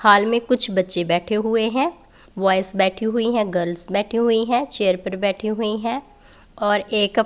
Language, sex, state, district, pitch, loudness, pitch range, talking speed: Hindi, female, Punjab, Pathankot, 215 Hz, -20 LUFS, 190-230 Hz, 180 wpm